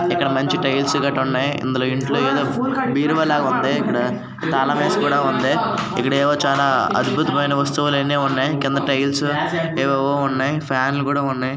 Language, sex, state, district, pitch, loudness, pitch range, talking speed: Telugu, male, Andhra Pradesh, Srikakulam, 140 Hz, -19 LUFS, 135-145 Hz, 150 wpm